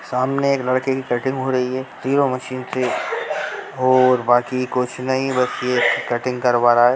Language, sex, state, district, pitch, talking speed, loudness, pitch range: Hindi, male, Bihar, Jamui, 130 Hz, 180 wpm, -19 LUFS, 125-130 Hz